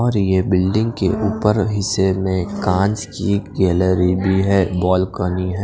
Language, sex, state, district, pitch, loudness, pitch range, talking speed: Hindi, male, Odisha, Khordha, 95 Hz, -18 LUFS, 95-105 Hz, 170 wpm